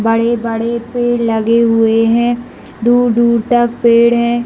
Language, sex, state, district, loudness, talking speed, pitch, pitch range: Hindi, female, Chhattisgarh, Bilaspur, -13 LUFS, 120 wpm, 235 Hz, 230-240 Hz